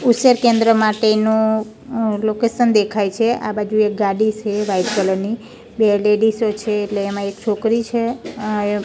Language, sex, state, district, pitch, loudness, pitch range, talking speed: Gujarati, female, Gujarat, Gandhinagar, 215 Hz, -18 LUFS, 210-230 Hz, 150 wpm